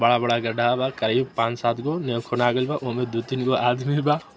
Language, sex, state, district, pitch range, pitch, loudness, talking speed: Maithili, male, Bihar, Samastipur, 120-130 Hz, 125 Hz, -23 LUFS, 205 wpm